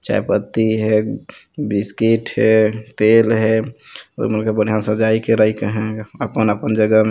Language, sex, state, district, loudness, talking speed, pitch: Chhattisgarhi, male, Chhattisgarh, Jashpur, -17 LUFS, 150 wpm, 110 Hz